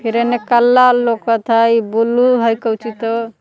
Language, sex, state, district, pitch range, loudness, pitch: Magahi, female, Jharkhand, Palamu, 225-240 Hz, -14 LUFS, 230 Hz